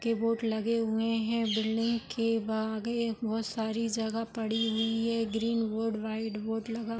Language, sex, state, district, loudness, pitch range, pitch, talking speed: Hindi, female, Jharkhand, Sahebganj, -31 LUFS, 220-230 Hz, 225 Hz, 190 wpm